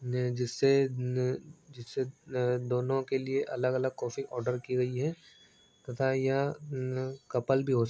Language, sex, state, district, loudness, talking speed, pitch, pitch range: Hindi, male, Bihar, Begusarai, -31 LUFS, 135 wpm, 130 Hz, 125-135 Hz